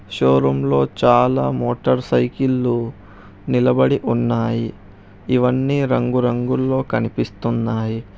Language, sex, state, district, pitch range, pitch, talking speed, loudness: Telugu, male, Telangana, Hyderabad, 95-125 Hz, 115 Hz, 90 wpm, -18 LUFS